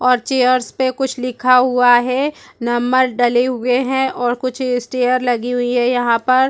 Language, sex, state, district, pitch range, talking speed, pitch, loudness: Hindi, female, Chhattisgarh, Rajnandgaon, 245-255 Hz, 175 wpm, 250 Hz, -16 LUFS